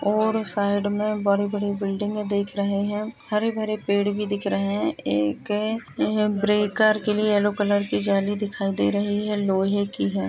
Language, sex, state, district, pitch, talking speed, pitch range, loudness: Hindi, female, Maharashtra, Dhule, 205 Hz, 175 wpm, 200-210 Hz, -24 LUFS